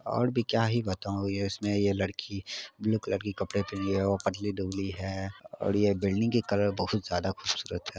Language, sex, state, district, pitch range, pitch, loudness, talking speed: Hindi, male, Bihar, Araria, 95-105 Hz, 100 Hz, -30 LUFS, 220 wpm